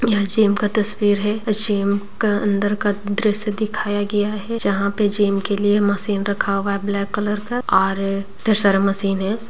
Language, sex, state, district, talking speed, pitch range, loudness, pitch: Hindi, female, Bihar, Begusarai, 190 wpm, 200-210 Hz, -18 LUFS, 205 Hz